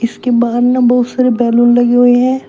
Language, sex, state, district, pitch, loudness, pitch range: Hindi, female, Uttar Pradesh, Shamli, 245 Hz, -11 LUFS, 240-250 Hz